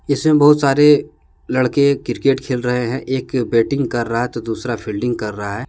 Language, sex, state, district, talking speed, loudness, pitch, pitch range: Hindi, male, Jharkhand, Deoghar, 200 wpm, -17 LUFS, 125 Hz, 115-140 Hz